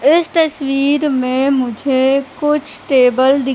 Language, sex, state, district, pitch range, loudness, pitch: Hindi, female, Madhya Pradesh, Katni, 260-295 Hz, -15 LUFS, 275 Hz